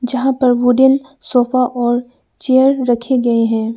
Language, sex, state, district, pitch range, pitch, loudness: Hindi, female, Arunachal Pradesh, Lower Dibang Valley, 240-265 Hz, 250 Hz, -14 LUFS